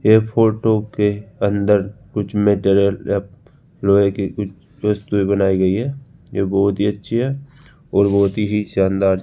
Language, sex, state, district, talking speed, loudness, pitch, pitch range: Hindi, male, Rajasthan, Jaipur, 155 wpm, -18 LUFS, 105 Hz, 100-110 Hz